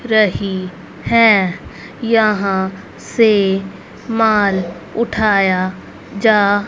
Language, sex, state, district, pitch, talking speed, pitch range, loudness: Hindi, female, Haryana, Rohtak, 205 Hz, 65 wpm, 190-220 Hz, -15 LUFS